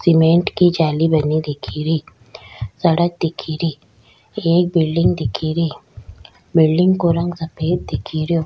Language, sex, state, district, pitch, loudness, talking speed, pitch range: Rajasthani, female, Rajasthan, Churu, 160 Hz, -18 LUFS, 120 wpm, 150-170 Hz